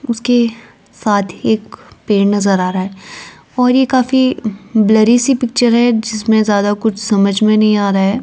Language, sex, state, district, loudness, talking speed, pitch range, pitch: Hindi, female, Himachal Pradesh, Shimla, -13 LUFS, 180 wpm, 205-240 Hz, 215 Hz